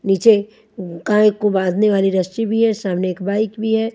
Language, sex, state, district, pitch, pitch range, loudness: Hindi, female, Haryana, Charkhi Dadri, 210 Hz, 190-220 Hz, -17 LUFS